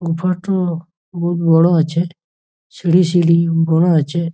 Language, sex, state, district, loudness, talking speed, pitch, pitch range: Bengali, male, West Bengal, Jhargram, -15 LUFS, 150 wpm, 170 Hz, 165-175 Hz